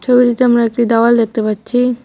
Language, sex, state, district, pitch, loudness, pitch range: Bengali, female, West Bengal, Cooch Behar, 235 Hz, -13 LUFS, 230-245 Hz